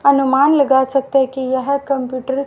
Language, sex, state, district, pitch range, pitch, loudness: Hindi, female, Haryana, Rohtak, 265-280 Hz, 270 Hz, -16 LUFS